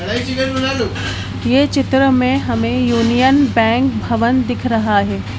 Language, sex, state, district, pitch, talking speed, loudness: Hindi, female, Bihar, Muzaffarpur, 225 Hz, 110 wpm, -15 LUFS